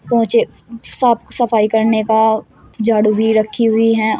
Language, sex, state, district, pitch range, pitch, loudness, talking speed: Hindi, female, Uttar Pradesh, Shamli, 220-230 Hz, 220 Hz, -15 LUFS, 145 wpm